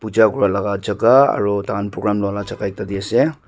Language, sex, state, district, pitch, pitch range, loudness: Nagamese, male, Nagaland, Dimapur, 105 Hz, 100-110 Hz, -18 LUFS